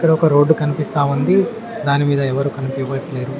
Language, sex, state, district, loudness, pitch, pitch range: Telugu, male, Telangana, Mahabubabad, -17 LUFS, 145 Hz, 135-160 Hz